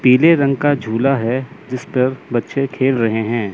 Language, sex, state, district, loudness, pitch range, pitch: Hindi, male, Chandigarh, Chandigarh, -17 LUFS, 120-135 Hz, 130 Hz